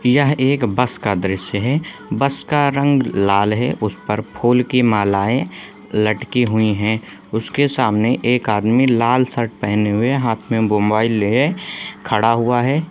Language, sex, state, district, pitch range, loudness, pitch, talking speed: Hindi, male, Jharkhand, Sahebganj, 105-125 Hz, -17 LUFS, 115 Hz, 155 wpm